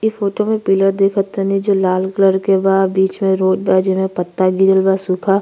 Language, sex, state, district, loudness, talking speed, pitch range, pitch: Bhojpuri, female, Uttar Pradesh, Gorakhpur, -15 LUFS, 230 wpm, 190-195 Hz, 195 Hz